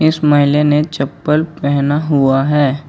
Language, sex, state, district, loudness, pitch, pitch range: Hindi, male, Jharkhand, Ranchi, -14 LUFS, 145 Hz, 140-150 Hz